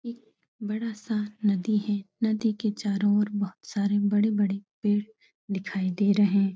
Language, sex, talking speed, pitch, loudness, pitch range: Hindi, female, 145 wpm, 205 Hz, -27 LUFS, 200-215 Hz